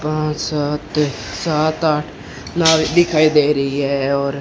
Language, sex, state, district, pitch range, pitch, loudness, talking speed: Hindi, female, Rajasthan, Bikaner, 140-155 Hz, 150 Hz, -17 LUFS, 135 wpm